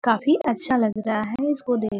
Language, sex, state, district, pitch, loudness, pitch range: Hindi, female, Bihar, Gopalganj, 235 Hz, -21 LUFS, 215-265 Hz